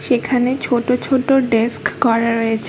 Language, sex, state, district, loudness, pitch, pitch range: Bengali, female, West Bengal, Kolkata, -17 LUFS, 240 Hz, 230-255 Hz